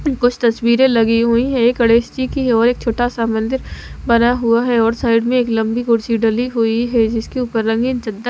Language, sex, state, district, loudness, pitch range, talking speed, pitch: Hindi, female, Haryana, Rohtak, -16 LUFS, 230-245 Hz, 215 wpm, 235 Hz